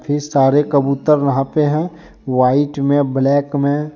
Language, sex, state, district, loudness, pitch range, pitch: Hindi, male, Jharkhand, Deoghar, -16 LUFS, 140-150 Hz, 145 Hz